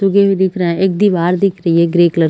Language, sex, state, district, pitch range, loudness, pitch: Hindi, female, Chhattisgarh, Rajnandgaon, 170-195 Hz, -13 LUFS, 185 Hz